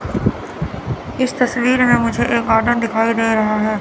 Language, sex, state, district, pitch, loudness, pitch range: Hindi, female, Chandigarh, Chandigarh, 230 Hz, -17 LUFS, 225-245 Hz